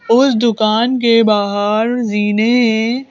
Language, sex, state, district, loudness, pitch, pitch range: Hindi, female, Madhya Pradesh, Bhopal, -14 LUFS, 225 Hz, 215-240 Hz